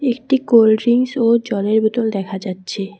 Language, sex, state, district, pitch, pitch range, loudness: Bengali, female, West Bengal, Cooch Behar, 220 Hz, 200-240 Hz, -16 LUFS